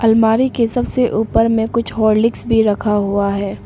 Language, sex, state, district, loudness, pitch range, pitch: Hindi, female, Arunachal Pradesh, Papum Pare, -16 LUFS, 210-230 Hz, 225 Hz